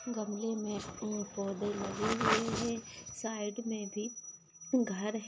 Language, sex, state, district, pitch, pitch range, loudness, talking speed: Hindi, female, Maharashtra, Aurangabad, 215 Hz, 205-225 Hz, -36 LUFS, 135 wpm